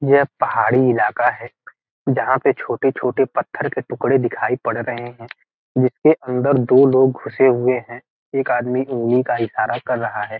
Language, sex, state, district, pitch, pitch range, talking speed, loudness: Hindi, male, Bihar, Gopalganj, 125 Hz, 120-130 Hz, 165 wpm, -18 LUFS